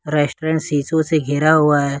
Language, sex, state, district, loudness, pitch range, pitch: Hindi, male, Jharkhand, Ranchi, -17 LUFS, 145-160 Hz, 150 Hz